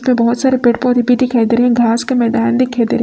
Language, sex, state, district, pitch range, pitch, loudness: Hindi, female, Chhattisgarh, Raipur, 235-250 Hz, 245 Hz, -13 LUFS